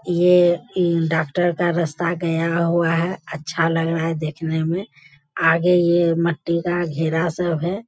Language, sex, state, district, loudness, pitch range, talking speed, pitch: Hindi, female, Bihar, Bhagalpur, -20 LUFS, 165-175 Hz, 160 wpm, 170 Hz